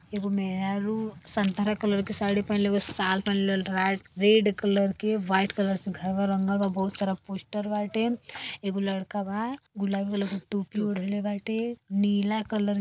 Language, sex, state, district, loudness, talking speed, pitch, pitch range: Bhojpuri, female, Uttar Pradesh, Deoria, -28 LUFS, 180 wpm, 200 Hz, 195-210 Hz